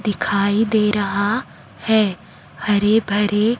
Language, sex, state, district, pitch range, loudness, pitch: Hindi, female, Chhattisgarh, Raipur, 200-220 Hz, -18 LUFS, 210 Hz